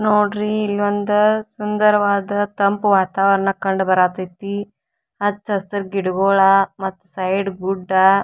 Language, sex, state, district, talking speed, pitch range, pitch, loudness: Kannada, female, Karnataka, Dharwad, 95 wpm, 195-205 Hz, 200 Hz, -18 LUFS